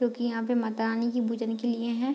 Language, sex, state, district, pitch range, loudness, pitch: Hindi, female, Bihar, Madhepura, 230-240 Hz, -29 LUFS, 235 Hz